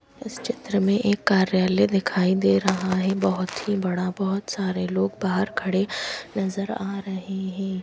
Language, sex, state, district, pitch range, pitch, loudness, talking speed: Hindi, female, Madhya Pradesh, Bhopal, 185-200 Hz, 190 Hz, -24 LUFS, 160 wpm